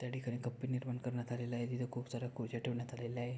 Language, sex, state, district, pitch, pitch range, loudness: Marathi, male, Maharashtra, Pune, 120 Hz, 120-125 Hz, -41 LUFS